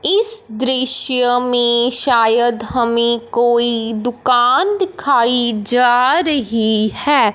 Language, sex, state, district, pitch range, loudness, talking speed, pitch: Hindi, female, Punjab, Fazilka, 235-260 Hz, -14 LUFS, 90 wpm, 245 Hz